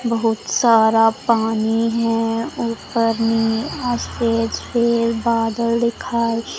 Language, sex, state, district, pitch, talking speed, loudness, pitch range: Hindi, female, Punjab, Pathankot, 230 Hz, 90 wpm, -18 LUFS, 225-235 Hz